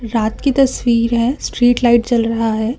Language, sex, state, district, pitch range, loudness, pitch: Hindi, female, Chhattisgarh, Raipur, 230-245 Hz, -15 LUFS, 235 Hz